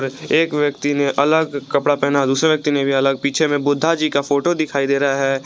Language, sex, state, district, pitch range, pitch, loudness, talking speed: Hindi, male, Jharkhand, Garhwa, 140-150 Hz, 140 Hz, -17 LUFS, 240 wpm